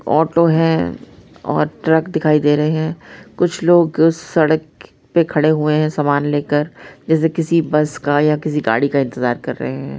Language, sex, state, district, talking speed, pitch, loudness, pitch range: Hindi, female, Uttar Pradesh, Varanasi, 185 wpm, 155 Hz, -16 LUFS, 145-160 Hz